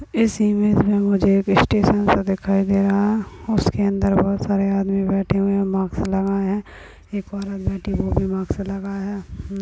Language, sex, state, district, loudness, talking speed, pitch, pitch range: Hindi, female, Chhattisgarh, Bastar, -20 LUFS, 185 wpm, 195 Hz, 195-200 Hz